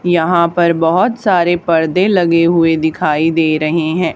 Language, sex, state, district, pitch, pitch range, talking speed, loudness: Hindi, female, Haryana, Charkhi Dadri, 170 Hz, 160-175 Hz, 160 wpm, -13 LUFS